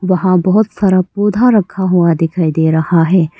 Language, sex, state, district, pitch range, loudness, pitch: Hindi, female, Arunachal Pradesh, Longding, 165-195 Hz, -12 LUFS, 185 Hz